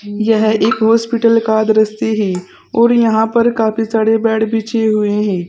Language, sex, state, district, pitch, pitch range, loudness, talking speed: Hindi, female, Uttar Pradesh, Saharanpur, 220 Hz, 215-225 Hz, -14 LUFS, 165 wpm